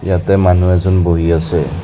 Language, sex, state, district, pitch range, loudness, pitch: Assamese, male, Assam, Kamrup Metropolitan, 85-95 Hz, -13 LUFS, 90 Hz